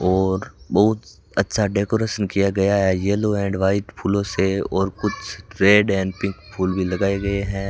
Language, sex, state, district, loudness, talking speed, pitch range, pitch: Hindi, male, Rajasthan, Bikaner, -21 LUFS, 170 wpm, 95-100 Hz, 100 Hz